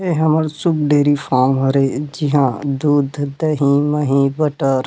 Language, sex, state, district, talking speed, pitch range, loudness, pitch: Chhattisgarhi, male, Chhattisgarh, Rajnandgaon, 150 wpm, 135-150 Hz, -16 LUFS, 145 Hz